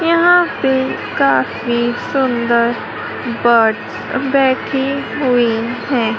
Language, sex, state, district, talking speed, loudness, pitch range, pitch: Hindi, female, Madhya Pradesh, Dhar, 75 wpm, -15 LUFS, 235-270 Hz, 250 Hz